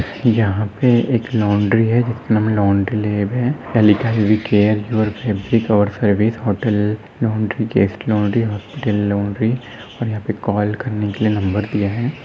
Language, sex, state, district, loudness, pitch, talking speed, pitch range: Hindi, male, Chhattisgarh, Raigarh, -18 LUFS, 110 Hz, 155 wpm, 105-115 Hz